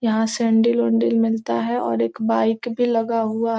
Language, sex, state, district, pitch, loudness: Hindi, female, Bihar, Gopalganj, 220 Hz, -20 LUFS